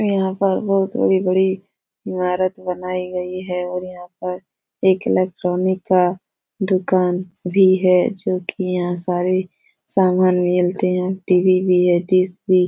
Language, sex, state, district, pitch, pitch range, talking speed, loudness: Hindi, female, Uttar Pradesh, Etah, 185 Hz, 180-190 Hz, 145 wpm, -19 LUFS